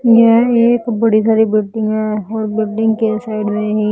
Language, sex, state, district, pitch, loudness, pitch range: Hindi, female, Bihar, Patna, 220 Hz, -14 LUFS, 215-230 Hz